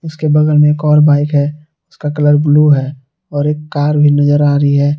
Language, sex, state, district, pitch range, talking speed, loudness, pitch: Hindi, male, Jharkhand, Palamu, 145-150 Hz, 230 wpm, -11 LUFS, 150 Hz